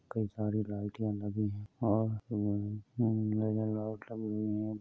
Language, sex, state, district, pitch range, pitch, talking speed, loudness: Hindi, male, Uttar Pradesh, Budaun, 105-110 Hz, 110 Hz, 125 wpm, -35 LUFS